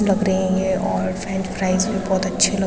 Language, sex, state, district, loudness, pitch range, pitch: Hindi, female, Uttarakhand, Tehri Garhwal, -20 LUFS, 190-195 Hz, 190 Hz